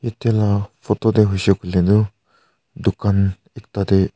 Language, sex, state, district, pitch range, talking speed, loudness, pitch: Nagamese, male, Nagaland, Kohima, 100-110 Hz, 145 wpm, -18 LUFS, 105 Hz